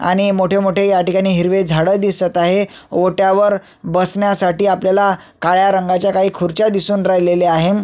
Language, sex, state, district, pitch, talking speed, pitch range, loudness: Marathi, male, Maharashtra, Sindhudurg, 190 Hz, 145 wpm, 180-200 Hz, -14 LUFS